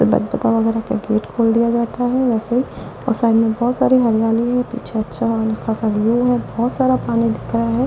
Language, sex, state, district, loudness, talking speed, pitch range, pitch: Hindi, female, Delhi, New Delhi, -18 LUFS, 200 wpm, 225-245 Hz, 230 Hz